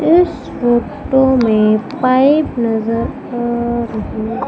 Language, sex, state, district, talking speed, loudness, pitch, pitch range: Hindi, female, Madhya Pradesh, Umaria, 95 wpm, -15 LUFS, 240 Hz, 230-265 Hz